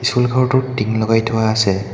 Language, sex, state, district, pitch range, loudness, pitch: Assamese, male, Assam, Hailakandi, 110-125 Hz, -16 LUFS, 115 Hz